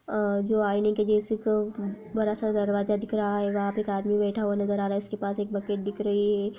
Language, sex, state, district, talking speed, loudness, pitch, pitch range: Hindi, female, Bihar, Araria, 265 wpm, -27 LUFS, 205 Hz, 205-210 Hz